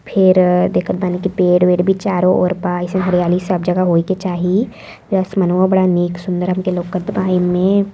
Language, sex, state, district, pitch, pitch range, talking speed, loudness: Hindi, female, Uttar Pradesh, Varanasi, 185 Hz, 180-190 Hz, 180 wpm, -15 LUFS